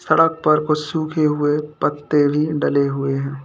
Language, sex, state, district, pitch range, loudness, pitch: Hindi, male, Uttar Pradesh, Lalitpur, 145-155 Hz, -19 LUFS, 150 Hz